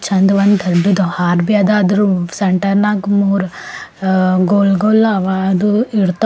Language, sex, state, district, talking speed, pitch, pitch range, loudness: Kannada, female, Karnataka, Bidar, 155 wpm, 195 Hz, 190-205 Hz, -14 LUFS